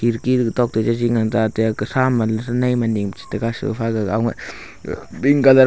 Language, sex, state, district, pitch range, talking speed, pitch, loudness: Wancho, male, Arunachal Pradesh, Longding, 110-125 Hz, 180 wpm, 115 Hz, -19 LUFS